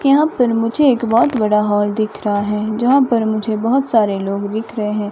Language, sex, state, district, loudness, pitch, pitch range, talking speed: Hindi, female, Himachal Pradesh, Shimla, -16 LUFS, 220 Hz, 210-240 Hz, 220 wpm